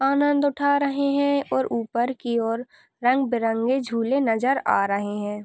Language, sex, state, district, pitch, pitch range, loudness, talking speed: Hindi, female, Maharashtra, Solapur, 250 Hz, 230-280 Hz, -23 LUFS, 165 wpm